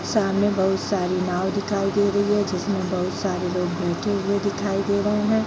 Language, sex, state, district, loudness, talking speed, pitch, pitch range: Hindi, female, Bihar, East Champaran, -23 LUFS, 195 wpm, 200 Hz, 185-205 Hz